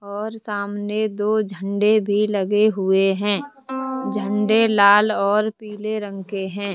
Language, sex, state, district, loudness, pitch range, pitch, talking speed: Hindi, male, Rajasthan, Jaipur, -20 LUFS, 200-215 Hz, 210 Hz, 135 wpm